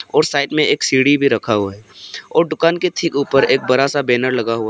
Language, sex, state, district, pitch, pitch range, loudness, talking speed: Hindi, male, Arunachal Pradesh, Papum Pare, 135 Hz, 120-150 Hz, -16 LUFS, 270 wpm